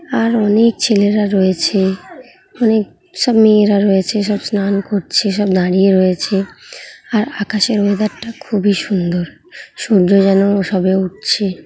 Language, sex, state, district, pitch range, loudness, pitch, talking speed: Bengali, female, West Bengal, Kolkata, 195-215 Hz, -14 LUFS, 205 Hz, 140 wpm